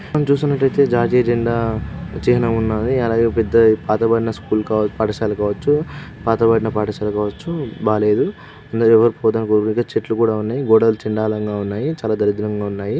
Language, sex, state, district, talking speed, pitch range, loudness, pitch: Telugu, male, Andhra Pradesh, Guntur, 120 wpm, 105-120 Hz, -18 LUFS, 115 Hz